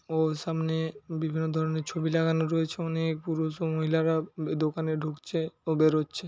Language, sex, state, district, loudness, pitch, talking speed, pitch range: Bengali, male, West Bengal, Paschim Medinipur, -29 LUFS, 160 Hz, 145 wpm, 155-165 Hz